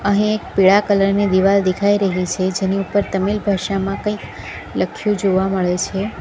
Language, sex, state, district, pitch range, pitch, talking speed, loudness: Gujarati, female, Gujarat, Valsad, 185-205 Hz, 195 Hz, 175 wpm, -18 LUFS